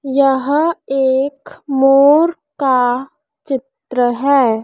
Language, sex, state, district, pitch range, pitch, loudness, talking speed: Hindi, female, Madhya Pradesh, Dhar, 260-285 Hz, 270 Hz, -15 LUFS, 75 wpm